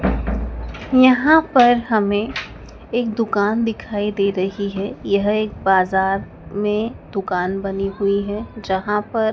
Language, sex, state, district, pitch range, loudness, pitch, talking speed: Hindi, female, Madhya Pradesh, Dhar, 195-225 Hz, -19 LUFS, 205 Hz, 120 wpm